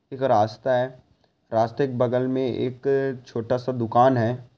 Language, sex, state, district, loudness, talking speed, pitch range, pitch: Hindi, male, Andhra Pradesh, Guntur, -23 LUFS, 145 wpm, 120-130 Hz, 125 Hz